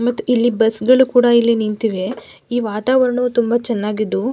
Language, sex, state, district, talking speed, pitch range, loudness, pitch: Kannada, female, Karnataka, Mysore, 140 wpm, 225-245 Hz, -16 LUFS, 235 Hz